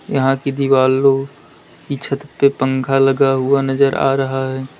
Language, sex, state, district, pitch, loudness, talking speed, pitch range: Hindi, male, Uttar Pradesh, Lalitpur, 135 Hz, -16 LUFS, 165 wpm, 135-140 Hz